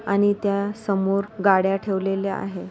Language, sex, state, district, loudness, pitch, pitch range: Marathi, female, Maharashtra, Solapur, -22 LUFS, 195 Hz, 195-200 Hz